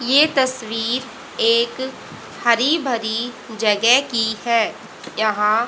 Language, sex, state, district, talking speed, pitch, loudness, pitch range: Hindi, female, Haryana, Jhajjar, 95 wpm, 240 Hz, -19 LUFS, 225-265 Hz